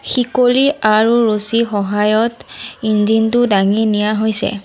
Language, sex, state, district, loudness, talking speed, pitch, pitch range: Assamese, female, Assam, Sonitpur, -14 LUFS, 105 wpm, 220 Hz, 210-235 Hz